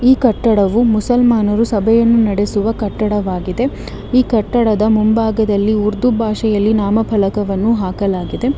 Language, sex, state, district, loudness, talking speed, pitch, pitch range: Kannada, female, Karnataka, Bangalore, -14 LUFS, 90 wpm, 215 Hz, 205-230 Hz